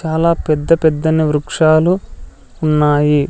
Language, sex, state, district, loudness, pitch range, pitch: Telugu, male, Andhra Pradesh, Sri Satya Sai, -14 LUFS, 150-160 Hz, 155 Hz